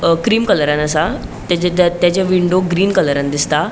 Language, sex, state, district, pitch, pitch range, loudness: Konkani, female, Goa, North and South Goa, 175 Hz, 150-185 Hz, -15 LUFS